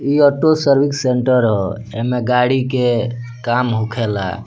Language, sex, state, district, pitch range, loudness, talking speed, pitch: Bhojpuri, male, Bihar, Muzaffarpur, 115-130 Hz, -16 LUFS, 135 wpm, 125 Hz